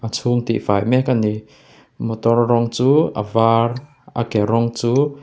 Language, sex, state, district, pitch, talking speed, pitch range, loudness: Mizo, male, Mizoram, Aizawl, 115 Hz, 170 wpm, 115-125 Hz, -18 LUFS